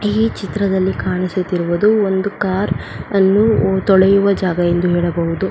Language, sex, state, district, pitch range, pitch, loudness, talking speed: Kannada, female, Karnataka, Belgaum, 175-200 Hz, 190 Hz, -16 LUFS, 110 wpm